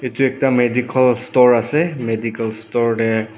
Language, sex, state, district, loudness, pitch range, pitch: Nagamese, male, Nagaland, Dimapur, -17 LUFS, 115-130 Hz, 120 Hz